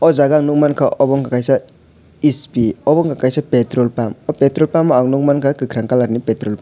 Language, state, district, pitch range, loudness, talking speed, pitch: Kokborok, Tripura, West Tripura, 125-150 Hz, -15 LUFS, 215 wpm, 135 Hz